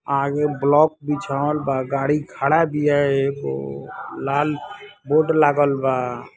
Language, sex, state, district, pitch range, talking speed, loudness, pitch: Bhojpuri, male, Uttar Pradesh, Ghazipur, 135-150 Hz, 120 wpm, -20 LUFS, 145 Hz